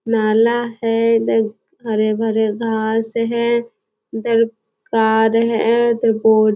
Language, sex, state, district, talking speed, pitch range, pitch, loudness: Hindi, female, Bihar, Jahanabad, 110 wpm, 220-230 Hz, 225 Hz, -17 LUFS